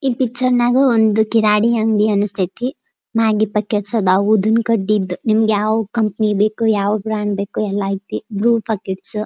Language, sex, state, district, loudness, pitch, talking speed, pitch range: Kannada, female, Karnataka, Dharwad, -17 LUFS, 215 Hz, 155 wpm, 210-225 Hz